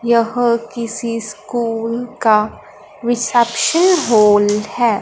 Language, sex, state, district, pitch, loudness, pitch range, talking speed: Hindi, male, Punjab, Fazilka, 230 Hz, -16 LUFS, 215-240 Hz, 85 wpm